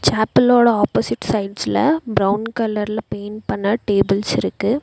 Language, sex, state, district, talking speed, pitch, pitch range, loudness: Tamil, female, Tamil Nadu, Nilgiris, 100 wpm, 215 Hz, 205-230 Hz, -18 LUFS